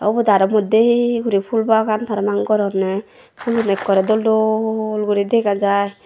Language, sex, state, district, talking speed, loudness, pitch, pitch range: Chakma, female, Tripura, Dhalai, 150 wpm, -17 LUFS, 215 Hz, 200-220 Hz